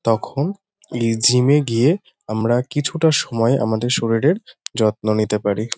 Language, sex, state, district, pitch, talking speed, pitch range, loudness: Bengali, male, West Bengal, North 24 Parganas, 120 Hz, 135 wpm, 110-145 Hz, -19 LUFS